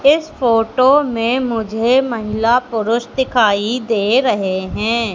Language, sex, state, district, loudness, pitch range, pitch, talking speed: Hindi, female, Madhya Pradesh, Katni, -16 LUFS, 220-255 Hz, 235 Hz, 115 wpm